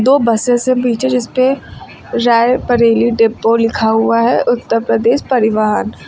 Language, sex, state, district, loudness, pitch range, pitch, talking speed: Hindi, female, Uttar Pradesh, Lucknow, -13 LUFS, 230-250 Hz, 235 Hz, 150 wpm